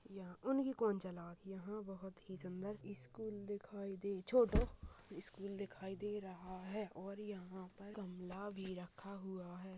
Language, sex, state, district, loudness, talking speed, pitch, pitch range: Hindi, female, Uttar Pradesh, Budaun, -44 LUFS, 155 wpm, 195 Hz, 185-205 Hz